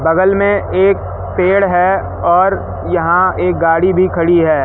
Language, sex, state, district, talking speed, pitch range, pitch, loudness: Hindi, male, Madhya Pradesh, Katni, 155 wpm, 170-190 Hz, 185 Hz, -13 LUFS